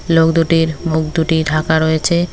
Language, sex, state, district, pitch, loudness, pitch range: Bengali, female, West Bengal, Cooch Behar, 160 Hz, -15 LUFS, 160-165 Hz